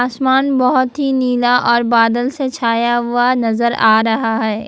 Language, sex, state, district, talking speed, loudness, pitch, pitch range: Hindi, female, Jharkhand, Ranchi, 165 wpm, -14 LUFS, 245 Hz, 230-255 Hz